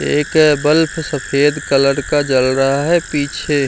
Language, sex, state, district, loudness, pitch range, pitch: Hindi, male, Bihar, Jamui, -15 LUFS, 140-150 Hz, 145 Hz